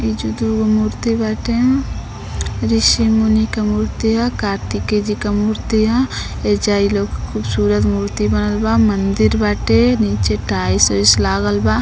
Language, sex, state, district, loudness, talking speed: Bhojpuri, female, Uttar Pradesh, Deoria, -16 LUFS, 135 wpm